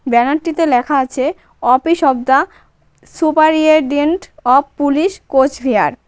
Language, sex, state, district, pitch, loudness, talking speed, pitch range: Bengali, female, West Bengal, Cooch Behar, 290 Hz, -14 LUFS, 110 wpm, 265-315 Hz